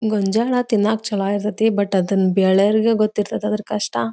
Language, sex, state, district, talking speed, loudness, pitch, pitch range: Kannada, female, Karnataka, Belgaum, 160 wpm, -19 LUFS, 210 Hz, 195-220 Hz